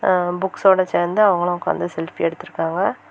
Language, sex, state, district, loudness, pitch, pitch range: Tamil, female, Tamil Nadu, Kanyakumari, -19 LUFS, 180 Hz, 175-190 Hz